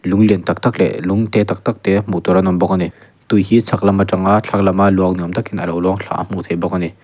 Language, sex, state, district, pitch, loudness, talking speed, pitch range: Mizo, male, Mizoram, Aizawl, 95 Hz, -16 LUFS, 305 wpm, 90-105 Hz